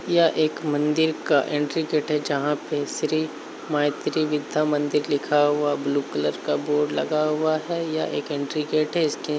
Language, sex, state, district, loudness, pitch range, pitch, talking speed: Hindi, male, Uttar Pradesh, Hamirpur, -24 LUFS, 145-155 Hz, 150 Hz, 165 wpm